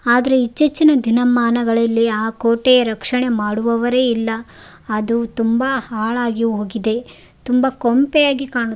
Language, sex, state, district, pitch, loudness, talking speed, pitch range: Kannada, female, Karnataka, Raichur, 235 Hz, -16 LUFS, 110 wpm, 225-255 Hz